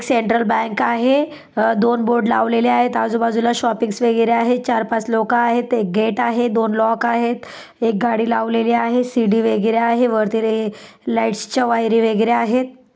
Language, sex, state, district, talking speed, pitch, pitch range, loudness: Marathi, female, Maharashtra, Dhule, 165 wpm, 230 Hz, 225-240 Hz, -17 LUFS